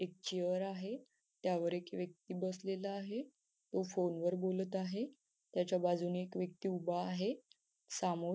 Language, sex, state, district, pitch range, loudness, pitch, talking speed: Marathi, female, Maharashtra, Nagpur, 180-195 Hz, -40 LUFS, 185 Hz, 135 wpm